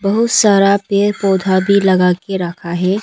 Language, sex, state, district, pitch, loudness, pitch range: Hindi, female, Arunachal Pradesh, Longding, 195 Hz, -14 LUFS, 185-200 Hz